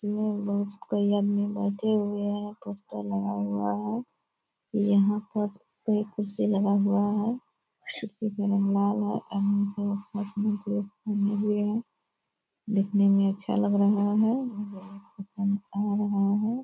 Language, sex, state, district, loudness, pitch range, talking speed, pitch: Hindi, female, Bihar, Purnia, -28 LUFS, 200-210 Hz, 125 wpm, 205 Hz